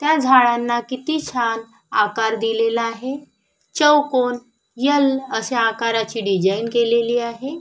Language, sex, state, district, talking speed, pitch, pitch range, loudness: Marathi, female, Maharashtra, Sindhudurg, 110 wpm, 240 Hz, 225-265 Hz, -19 LUFS